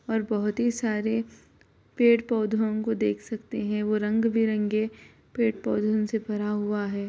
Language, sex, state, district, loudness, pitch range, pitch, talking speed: Bhojpuri, female, Bihar, Saran, -26 LUFS, 210-225 Hz, 215 Hz, 135 wpm